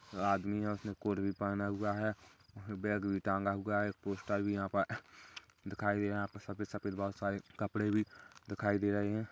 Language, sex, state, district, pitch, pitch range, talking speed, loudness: Hindi, male, Chhattisgarh, Kabirdham, 100 Hz, 100-105 Hz, 215 wpm, -37 LUFS